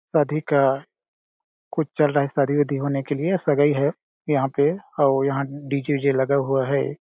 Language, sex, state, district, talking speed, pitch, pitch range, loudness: Hindi, male, Chhattisgarh, Balrampur, 195 wpm, 140 Hz, 140-150 Hz, -22 LUFS